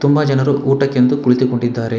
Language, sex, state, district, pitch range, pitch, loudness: Kannada, male, Karnataka, Bangalore, 125-140 Hz, 135 Hz, -15 LUFS